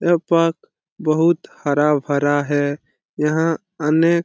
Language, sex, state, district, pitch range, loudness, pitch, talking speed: Hindi, male, Bihar, Lakhisarai, 145-165 Hz, -19 LUFS, 155 Hz, 115 wpm